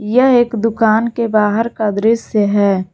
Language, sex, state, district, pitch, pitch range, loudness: Hindi, female, Jharkhand, Garhwa, 220 Hz, 210-230 Hz, -14 LUFS